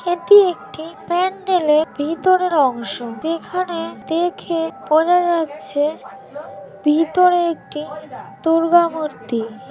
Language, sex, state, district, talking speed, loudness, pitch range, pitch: Bengali, female, West Bengal, Jhargram, 75 wpm, -18 LUFS, 290-350 Hz, 325 Hz